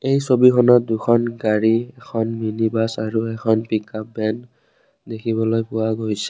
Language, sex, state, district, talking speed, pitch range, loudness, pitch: Assamese, male, Assam, Kamrup Metropolitan, 135 wpm, 110-120 Hz, -19 LUFS, 115 Hz